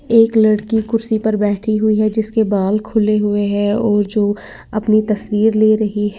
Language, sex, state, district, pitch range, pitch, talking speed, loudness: Hindi, female, Uttar Pradesh, Lalitpur, 210-220 Hz, 215 Hz, 185 wpm, -16 LUFS